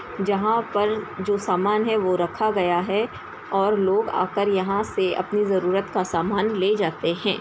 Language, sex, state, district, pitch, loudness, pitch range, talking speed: Hindi, female, Uttar Pradesh, Ghazipur, 200 Hz, -23 LUFS, 185-210 Hz, 180 wpm